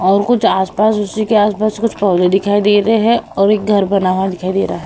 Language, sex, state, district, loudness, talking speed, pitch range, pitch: Hindi, female, Uttar Pradesh, Hamirpur, -14 LUFS, 260 wpm, 195-215 Hz, 205 Hz